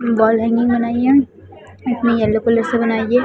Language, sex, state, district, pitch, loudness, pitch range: Hindi, female, Chhattisgarh, Balrampur, 230 Hz, -16 LUFS, 225-240 Hz